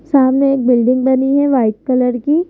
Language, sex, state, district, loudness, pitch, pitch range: Hindi, female, Madhya Pradesh, Bhopal, -14 LUFS, 265 Hz, 250-275 Hz